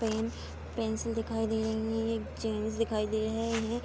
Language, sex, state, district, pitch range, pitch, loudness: Hindi, female, Uttar Pradesh, Jalaun, 220-225 Hz, 225 Hz, -33 LUFS